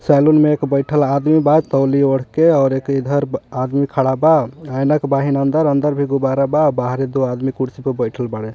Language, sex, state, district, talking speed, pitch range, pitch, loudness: Bhojpuri, male, Jharkhand, Palamu, 190 wpm, 135-145 Hz, 140 Hz, -16 LUFS